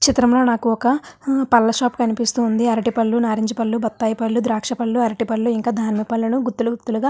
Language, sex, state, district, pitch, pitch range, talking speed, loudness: Telugu, female, Andhra Pradesh, Visakhapatnam, 235 Hz, 225-240 Hz, 175 wpm, -19 LUFS